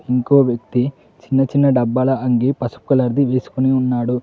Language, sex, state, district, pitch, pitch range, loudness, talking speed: Telugu, male, Telangana, Mahabubabad, 130 Hz, 125-135 Hz, -17 LUFS, 155 wpm